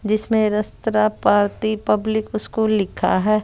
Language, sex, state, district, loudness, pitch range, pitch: Hindi, female, Bihar, West Champaran, -20 LUFS, 210-220 Hz, 215 Hz